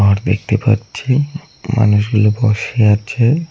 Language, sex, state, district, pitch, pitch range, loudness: Bengali, male, West Bengal, Cooch Behar, 110 Hz, 105-130 Hz, -15 LUFS